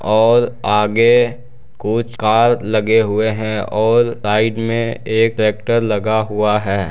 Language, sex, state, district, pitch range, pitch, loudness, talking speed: Hindi, male, Bihar, Jamui, 105-115 Hz, 110 Hz, -15 LUFS, 130 wpm